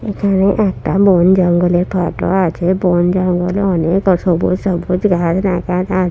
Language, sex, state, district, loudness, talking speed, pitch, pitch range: Bengali, female, West Bengal, Purulia, -14 LUFS, 135 wpm, 185 Hz, 175-190 Hz